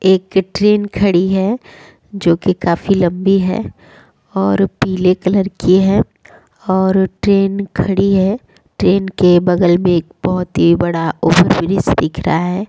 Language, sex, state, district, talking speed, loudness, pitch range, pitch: Hindi, female, Bihar, Sitamarhi, 145 wpm, -14 LUFS, 175-195 Hz, 185 Hz